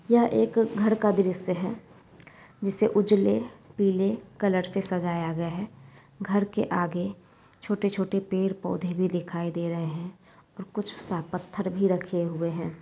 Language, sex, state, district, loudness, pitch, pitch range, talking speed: Angika, female, Bihar, Madhepura, -27 LUFS, 190 Hz, 175-205 Hz, 155 wpm